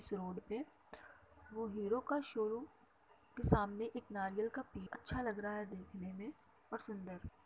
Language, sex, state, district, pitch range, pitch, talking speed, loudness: Hindi, female, Uttar Pradesh, Deoria, 200-230 Hz, 215 Hz, 175 wpm, -43 LUFS